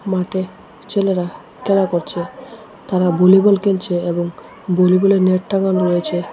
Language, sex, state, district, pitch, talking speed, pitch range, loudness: Bengali, male, Tripura, West Tripura, 185 Hz, 115 wpm, 180-195 Hz, -16 LUFS